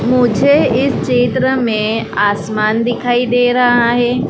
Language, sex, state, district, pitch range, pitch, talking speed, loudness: Hindi, female, Madhya Pradesh, Dhar, 220-245 Hz, 245 Hz, 125 wpm, -13 LUFS